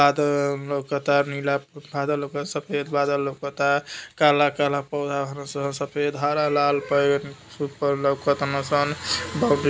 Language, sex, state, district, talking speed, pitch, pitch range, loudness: Hindi, male, Uttar Pradesh, Deoria, 130 wpm, 140 Hz, 140-145 Hz, -24 LUFS